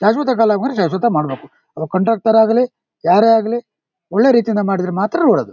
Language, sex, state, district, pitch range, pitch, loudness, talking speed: Kannada, male, Karnataka, Shimoga, 185-230 Hz, 220 Hz, -15 LUFS, 150 wpm